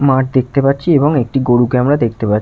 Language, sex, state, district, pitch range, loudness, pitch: Bengali, male, West Bengal, Jalpaiguri, 120-140 Hz, -13 LUFS, 130 Hz